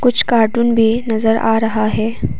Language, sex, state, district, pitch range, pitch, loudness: Hindi, female, Arunachal Pradesh, Papum Pare, 225-235 Hz, 225 Hz, -15 LUFS